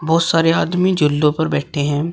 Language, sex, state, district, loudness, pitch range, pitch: Hindi, male, Uttar Pradesh, Shamli, -16 LUFS, 150-165 Hz, 160 Hz